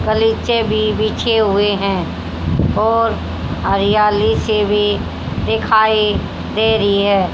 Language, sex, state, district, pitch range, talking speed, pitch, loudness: Hindi, female, Haryana, Jhajjar, 205-220 Hz, 105 wpm, 215 Hz, -16 LUFS